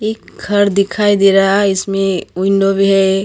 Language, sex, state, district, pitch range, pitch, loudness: Hindi, female, Maharashtra, Gondia, 195-205 Hz, 195 Hz, -13 LUFS